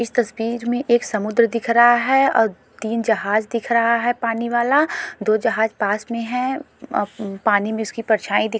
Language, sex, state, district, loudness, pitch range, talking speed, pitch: Hindi, female, Goa, North and South Goa, -19 LUFS, 220-240 Hz, 175 wpm, 230 Hz